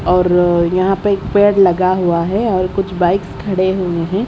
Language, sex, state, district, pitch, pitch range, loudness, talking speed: Hindi, female, Odisha, Khordha, 185 Hz, 180-195 Hz, -14 LUFS, 210 wpm